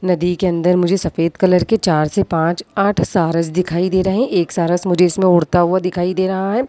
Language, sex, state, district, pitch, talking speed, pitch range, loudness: Hindi, female, Bihar, East Champaran, 180 Hz, 235 wpm, 170-190 Hz, -16 LUFS